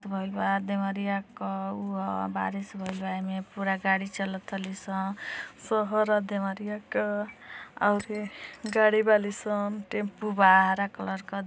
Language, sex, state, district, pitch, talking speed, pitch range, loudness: Hindi, female, Uttar Pradesh, Deoria, 195 Hz, 105 wpm, 190-210 Hz, -28 LUFS